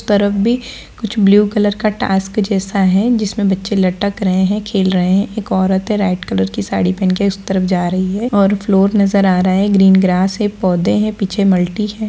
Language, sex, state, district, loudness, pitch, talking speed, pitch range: Hindi, female, Bihar, Jahanabad, -14 LUFS, 195 Hz, 225 wpm, 190-210 Hz